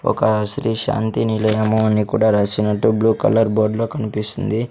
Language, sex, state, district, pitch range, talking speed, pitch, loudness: Telugu, male, Andhra Pradesh, Sri Satya Sai, 105-110 Hz, 155 wpm, 110 Hz, -18 LUFS